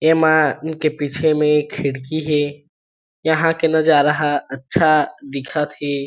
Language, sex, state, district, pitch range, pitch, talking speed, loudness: Chhattisgarhi, male, Chhattisgarh, Jashpur, 140-155 Hz, 150 Hz, 140 wpm, -18 LUFS